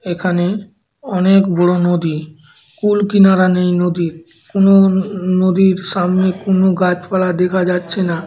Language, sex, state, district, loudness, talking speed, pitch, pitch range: Bengali, female, West Bengal, Dakshin Dinajpur, -14 LUFS, 125 wpm, 185 Hz, 175-195 Hz